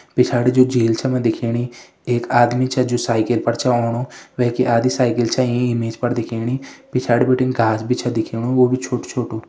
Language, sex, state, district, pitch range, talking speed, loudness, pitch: Hindi, male, Uttarakhand, Tehri Garhwal, 115-125 Hz, 195 wpm, -18 LUFS, 120 Hz